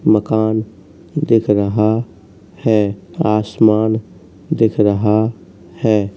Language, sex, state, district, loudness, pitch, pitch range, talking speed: Hindi, male, Uttar Pradesh, Hamirpur, -16 LUFS, 105 Hz, 100-110 Hz, 80 wpm